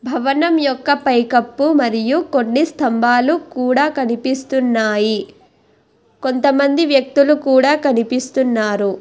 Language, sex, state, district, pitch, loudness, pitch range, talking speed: Telugu, female, Telangana, Hyderabad, 265 Hz, -16 LUFS, 240-285 Hz, 80 wpm